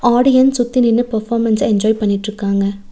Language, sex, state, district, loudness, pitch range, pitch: Tamil, female, Tamil Nadu, Nilgiris, -15 LUFS, 205-245 Hz, 220 Hz